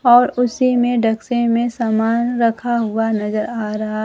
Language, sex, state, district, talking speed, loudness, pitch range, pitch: Hindi, female, Bihar, Kaimur, 165 wpm, -17 LUFS, 220-240 Hz, 235 Hz